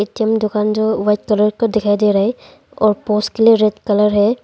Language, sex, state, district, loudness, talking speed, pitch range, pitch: Hindi, female, Arunachal Pradesh, Longding, -15 LUFS, 200 wpm, 210-220 Hz, 210 Hz